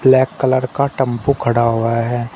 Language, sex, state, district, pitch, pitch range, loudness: Hindi, male, Uttar Pradesh, Shamli, 130 Hz, 120-135 Hz, -16 LUFS